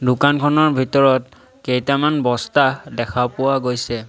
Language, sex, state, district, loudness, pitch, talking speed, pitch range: Assamese, male, Assam, Sonitpur, -17 LUFS, 130 Hz, 105 wpm, 125-145 Hz